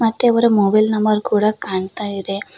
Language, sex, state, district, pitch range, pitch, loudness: Kannada, female, Karnataka, Koppal, 200-220 Hz, 215 Hz, -17 LUFS